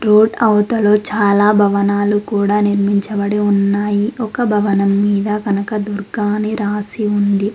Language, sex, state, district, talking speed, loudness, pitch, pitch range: Telugu, female, Telangana, Mahabubabad, 110 wpm, -15 LUFS, 205 Hz, 200-210 Hz